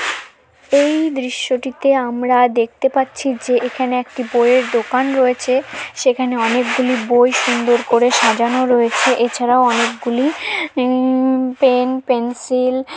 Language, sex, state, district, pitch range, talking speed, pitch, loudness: Bengali, female, West Bengal, Dakshin Dinajpur, 245-260 Hz, 115 wpm, 255 Hz, -16 LUFS